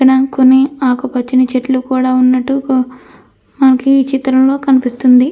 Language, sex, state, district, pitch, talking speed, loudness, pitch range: Telugu, female, Andhra Pradesh, Anantapur, 260 Hz, 115 wpm, -12 LUFS, 255-270 Hz